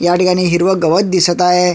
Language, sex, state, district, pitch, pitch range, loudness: Marathi, male, Maharashtra, Sindhudurg, 180 Hz, 175-185 Hz, -12 LUFS